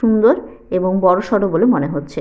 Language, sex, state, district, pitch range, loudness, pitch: Bengali, female, West Bengal, Purulia, 180-225 Hz, -16 LUFS, 190 Hz